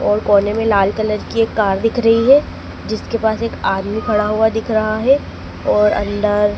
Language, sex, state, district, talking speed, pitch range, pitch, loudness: Hindi, female, Madhya Pradesh, Dhar, 200 wpm, 210-225 Hz, 215 Hz, -16 LUFS